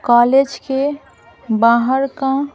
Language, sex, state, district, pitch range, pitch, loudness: Hindi, female, Bihar, Patna, 240-275 Hz, 270 Hz, -16 LUFS